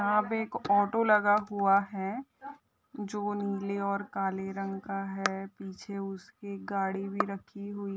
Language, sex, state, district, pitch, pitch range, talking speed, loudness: Hindi, female, Bihar, East Champaran, 200 Hz, 195-205 Hz, 150 wpm, -31 LUFS